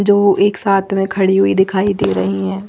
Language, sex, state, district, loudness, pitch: Hindi, female, Punjab, Fazilka, -15 LUFS, 195 Hz